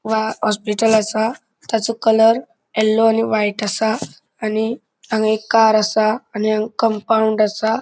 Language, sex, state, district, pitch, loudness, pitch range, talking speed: Konkani, male, Goa, North and South Goa, 220 Hz, -17 LUFS, 215-225 Hz, 140 wpm